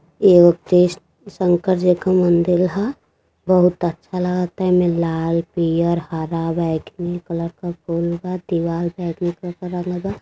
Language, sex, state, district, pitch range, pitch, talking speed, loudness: Bhojpuri, male, Uttar Pradesh, Deoria, 170-180 Hz, 175 Hz, 140 wpm, -19 LUFS